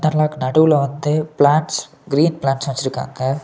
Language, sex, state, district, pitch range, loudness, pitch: Tamil, male, Tamil Nadu, Kanyakumari, 135-155 Hz, -18 LUFS, 145 Hz